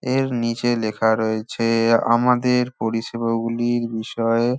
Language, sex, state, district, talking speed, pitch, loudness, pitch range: Bengali, male, West Bengal, Dakshin Dinajpur, 120 wpm, 115 Hz, -20 LUFS, 115-120 Hz